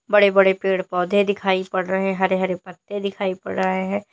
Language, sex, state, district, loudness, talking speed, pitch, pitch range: Hindi, female, Uttar Pradesh, Lalitpur, -21 LUFS, 205 wpm, 190 Hz, 185-200 Hz